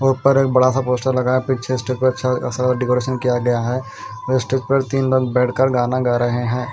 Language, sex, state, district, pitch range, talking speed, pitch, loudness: Hindi, male, Punjab, Kapurthala, 125-130 Hz, 205 wpm, 130 Hz, -18 LUFS